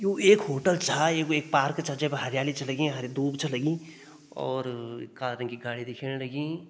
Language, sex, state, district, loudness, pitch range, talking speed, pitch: Garhwali, male, Uttarakhand, Tehri Garhwal, -28 LUFS, 130-155 Hz, 215 wpm, 140 Hz